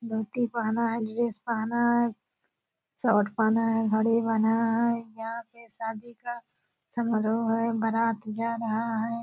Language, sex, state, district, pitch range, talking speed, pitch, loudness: Hindi, female, Bihar, Purnia, 225-235 Hz, 145 wpm, 230 Hz, -27 LUFS